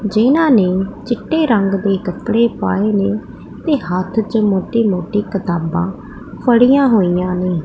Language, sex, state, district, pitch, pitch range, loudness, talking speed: Punjabi, female, Punjab, Pathankot, 210 Hz, 185-240 Hz, -16 LUFS, 135 wpm